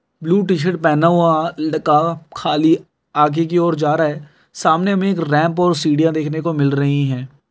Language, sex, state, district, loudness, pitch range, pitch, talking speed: Hindi, male, Bihar, Sitamarhi, -17 LUFS, 150-175 Hz, 160 Hz, 185 wpm